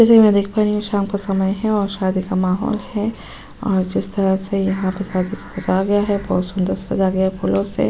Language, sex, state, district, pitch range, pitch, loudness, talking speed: Hindi, female, Uttar Pradesh, Jalaun, 185-205 Hz, 195 Hz, -19 LUFS, 265 wpm